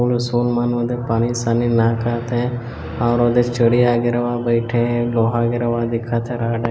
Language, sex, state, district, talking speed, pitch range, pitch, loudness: Hindi, male, Chhattisgarh, Bilaspur, 180 wpm, 115-120 Hz, 120 Hz, -18 LUFS